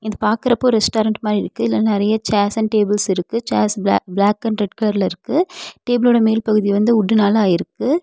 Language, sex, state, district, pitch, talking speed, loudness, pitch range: Tamil, female, Tamil Nadu, Nilgiris, 215 Hz, 170 wpm, -17 LUFS, 205-225 Hz